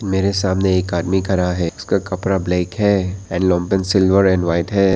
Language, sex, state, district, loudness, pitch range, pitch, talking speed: Hindi, male, Arunachal Pradesh, Papum Pare, -17 LUFS, 90-95 Hz, 95 Hz, 180 wpm